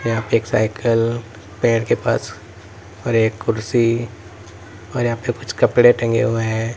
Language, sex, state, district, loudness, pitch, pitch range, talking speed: Hindi, male, Uttar Pradesh, Lalitpur, -18 LUFS, 115 Hz, 105-115 Hz, 160 wpm